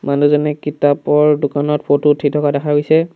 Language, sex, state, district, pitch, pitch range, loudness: Assamese, male, Assam, Sonitpur, 145 Hz, 145-150 Hz, -15 LUFS